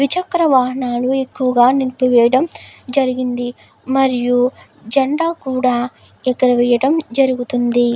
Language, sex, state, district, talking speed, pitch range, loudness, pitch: Telugu, female, Andhra Pradesh, Guntur, 100 wpm, 245-270 Hz, -16 LUFS, 255 Hz